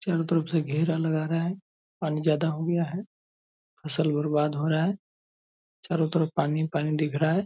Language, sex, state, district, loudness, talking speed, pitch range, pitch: Hindi, male, Bihar, Purnia, -27 LUFS, 200 wpm, 155-170 Hz, 160 Hz